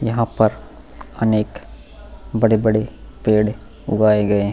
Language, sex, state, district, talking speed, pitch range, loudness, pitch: Hindi, male, Goa, North and South Goa, 105 wpm, 105-110 Hz, -18 LUFS, 110 Hz